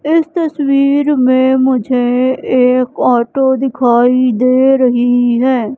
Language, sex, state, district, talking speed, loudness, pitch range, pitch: Hindi, female, Madhya Pradesh, Katni, 105 wpm, -12 LUFS, 250-270 Hz, 255 Hz